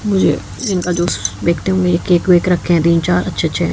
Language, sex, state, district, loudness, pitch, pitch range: Hindi, female, Haryana, Jhajjar, -15 LUFS, 175 Hz, 175-185 Hz